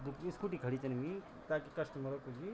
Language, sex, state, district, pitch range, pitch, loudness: Garhwali, male, Uttarakhand, Tehri Garhwal, 135-180 Hz, 150 Hz, -42 LUFS